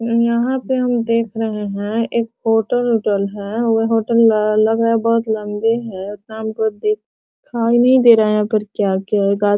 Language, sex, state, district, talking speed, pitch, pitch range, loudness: Hindi, female, Bihar, Sitamarhi, 200 wpm, 225 Hz, 210-230 Hz, -17 LUFS